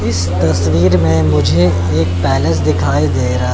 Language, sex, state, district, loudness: Hindi, male, Chandigarh, Chandigarh, -13 LUFS